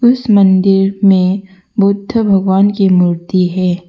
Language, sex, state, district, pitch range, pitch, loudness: Hindi, female, Arunachal Pradesh, Papum Pare, 185-200 Hz, 195 Hz, -12 LUFS